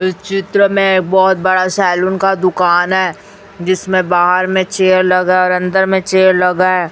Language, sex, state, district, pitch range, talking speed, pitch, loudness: Hindi, female, Chhattisgarh, Raipur, 185-190 Hz, 190 wpm, 185 Hz, -12 LUFS